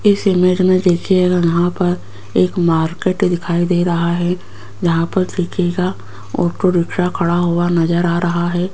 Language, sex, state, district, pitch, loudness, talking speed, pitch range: Hindi, female, Rajasthan, Jaipur, 175 Hz, -16 LUFS, 160 wpm, 170-185 Hz